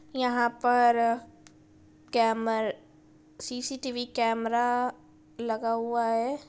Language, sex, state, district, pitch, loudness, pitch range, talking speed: Hindi, female, Bihar, Gopalganj, 235 Hz, -28 LUFS, 225-245 Hz, 75 wpm